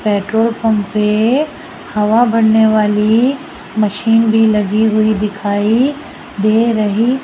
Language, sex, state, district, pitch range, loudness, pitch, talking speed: Hindi, female, Rajasthan, Jaipur, 210-230 Hz, -13 LUFS, 220 Hz, 110 wpm